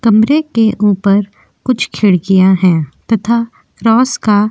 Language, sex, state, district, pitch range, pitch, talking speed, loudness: Hindi, female, Uttar Pradesh, Jyotiba Phule Nagar, 195-230 Hz, 215 Hz, 135 wpm, -12 LUFS